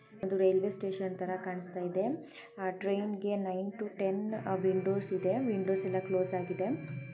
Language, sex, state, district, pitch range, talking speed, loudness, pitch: Kannada, female, Karnataka, Chamarajanagar, 185-200 Hz, 125 wpm, -34 LUFS, 190 Hz